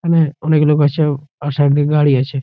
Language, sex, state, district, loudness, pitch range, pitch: Bengali, male, West Bengal, Jhargram, -15 LUFS, 145-150 Hz, 145 Hz